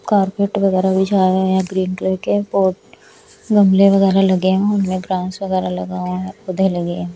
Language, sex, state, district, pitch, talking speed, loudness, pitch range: Hindi, female, Chhattisgarh, Raipur, 190 Hz, 190 wpm, -17 LUFS, 185-195 Hz